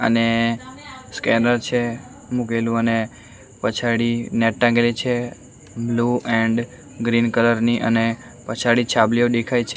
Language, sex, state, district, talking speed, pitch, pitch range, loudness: Gujarati, male, Gujarat, Valsad, 115 wpm, 115 Hz, 115-120 Hz, -20 LUFS